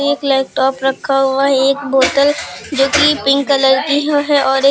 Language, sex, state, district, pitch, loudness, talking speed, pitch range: Hindi, female, Uttar Pradesh, Lucknow, 275 Hz, -13 LUFS, 190 wpm, 270-285 Hz